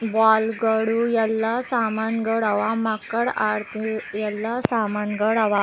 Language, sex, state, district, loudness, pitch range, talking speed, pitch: Kannada, female, Karnataka, Bidar, -22 LUFS, 215-225 Hz, 115 wpm, 220 Hz